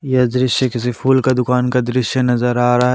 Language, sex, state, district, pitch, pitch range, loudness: Hindi, male, Jharkhand, Ranchi, 125 Hz, 125-130 Hz, -16 LUFS